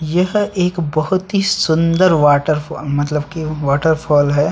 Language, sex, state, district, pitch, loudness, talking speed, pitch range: Hindi, male, Chhattisgarh, Sukma, 160 Hz, -16 LUFS, 135 wpm, 150-180 Hz